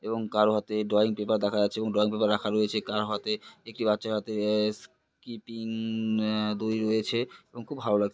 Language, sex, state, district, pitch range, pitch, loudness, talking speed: Bengali, male, West Bengal, Purulia, 105-110 Hz, 110 Hz, -28 LUFS, 190 wpm